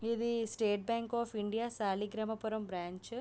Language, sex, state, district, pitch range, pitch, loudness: Telugu, female, Andhra Pradesh, Visakhapatnam, 210-230 Hz, 220 Hz, -37 LUFS